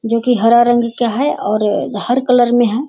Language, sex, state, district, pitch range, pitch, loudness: Hindi, female, Bihar, Sitamarhi, 230-245 Hz, 240 Hz, -14 LUFS